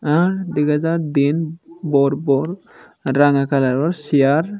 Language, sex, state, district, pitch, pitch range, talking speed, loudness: Chakma, male, Tripura, Unakoti, 150 Hz, 140-165 Hz, 115 wpm, -18 LUFS